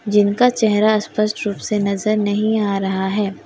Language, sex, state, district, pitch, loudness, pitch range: Hindi, female, Jharkhand, Deoghar, 210 Hz, -18 LUFS, 200-215 Hz